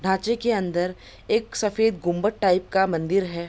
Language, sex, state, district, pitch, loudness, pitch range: Hindi, female, Bihar, Gopalganj, 190 Hz, -23 LUFS, 180-220 Hz